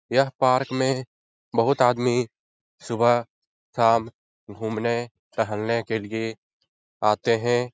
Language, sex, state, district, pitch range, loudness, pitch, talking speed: Hindi, male, Bihar, Jahanabad, 110-125 Hz, -24 LUFS, 115 Hz, 100 wpm